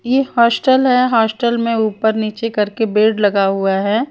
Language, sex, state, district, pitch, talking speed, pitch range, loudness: Hindi, female, Maharashtra, Mumbai Suburban, 225 Hz, 175 wpm, 210-240 Hz, -15 LUFS